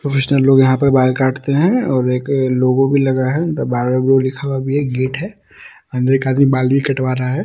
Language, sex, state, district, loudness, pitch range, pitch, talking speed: Hindi, male, Bihar, Muzaffarpur, -15 LUFS, 130-140 Hz, 135 Hz, 225 wpm